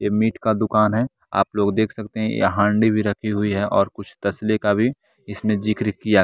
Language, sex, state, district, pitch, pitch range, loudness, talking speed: Hindi, male, Bihar, West Champaran, 105 Hz, 105-110 Hz, -21 LUFS, 230 wpm